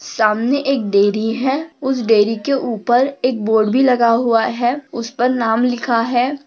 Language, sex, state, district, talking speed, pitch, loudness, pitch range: Hindi, female, Maharashtra, Pune, 165 wpm, 240 Hz, -16 LUFS, 225-265 Hz